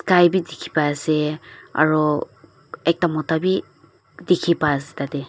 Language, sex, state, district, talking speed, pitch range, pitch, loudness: Nagamese, female, Nagaland, Dimapur, 145 wpm, 150-175 Hz, 155 Hz, -21 LUFS